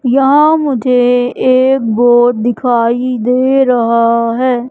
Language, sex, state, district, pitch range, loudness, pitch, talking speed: Hindi, female, Madhya Pradesh, Katni, 240-260 Hz, -11 LUFS, 245 Hz, 100 wpm